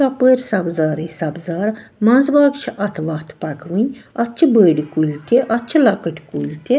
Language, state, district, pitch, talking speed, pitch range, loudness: Kashmiri, Punjab, Kapurthala, 205 Hz, 105 wpm, 155-250 Hz, -17 LUFS